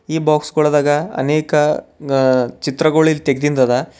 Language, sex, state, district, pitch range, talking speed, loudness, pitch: Kannada, male, Karnataka, Bidar, 135-155 Hz, 120 wpm, -16 LUFS, 150 Hz